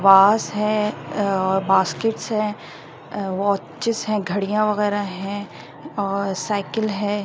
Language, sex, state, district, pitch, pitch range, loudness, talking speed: Hindi, female, Delhi, New Delhi, 200 Hz, 195-210 Hz, -21 LUFS, 115 wpm